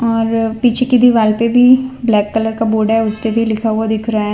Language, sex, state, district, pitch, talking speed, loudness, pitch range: Hindi, female, Gujarat, Valsad, 225 Hz, 250 wpm, -13 LUFS, 220-235 Hz